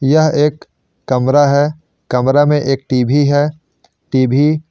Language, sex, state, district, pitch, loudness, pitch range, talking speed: Hindi, male, Chandigarh, Chandigarh, 145 Hz, -14 LUFS, 135-150 Hz, 140 wpm